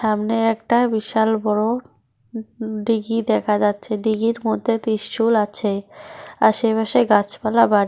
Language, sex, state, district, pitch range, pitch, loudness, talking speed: Bengali, female, West Bengal, Cooch Behar, 215-230 Hz, 220 Hz, -20 LUFS, 120 wpm